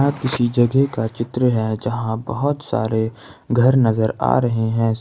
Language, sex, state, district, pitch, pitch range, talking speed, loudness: Hindi, male, Jharkhand, Ranchi, 120 Hz, 110-130 Hz, 155 wpm, -19 LUFS